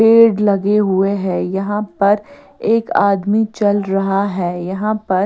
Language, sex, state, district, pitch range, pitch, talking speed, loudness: Hindi, female, Bihar, West Champaran, 195-210 Hz, 200 Hz, 150 wpm, -16 LUFS